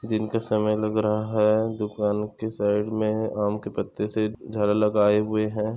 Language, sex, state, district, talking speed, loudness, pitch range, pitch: Hindi, male, Chhattisgarh, Korba, 185 wpm, -24 LUFS, 105-110 Hz, 105 Hz